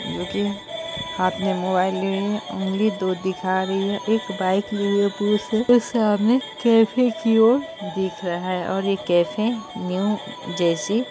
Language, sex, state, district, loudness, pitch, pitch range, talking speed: Hindi, female, Bihar, Saharsa, -22 LUFS, 200 Hz, 190-220 Hz, 145 wpm